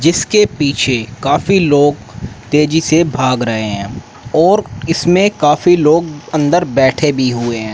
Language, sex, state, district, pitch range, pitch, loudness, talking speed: Hindi, male, Haryana, Rohtak, 120-165 Hz, 145 Hz, -13 LUFS, 140 wpm